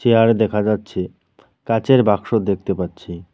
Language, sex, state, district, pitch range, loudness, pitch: Bengali, male, West Bengal, Cooch Behar, 95-115 Hz, -18 LUFS, 105 Hz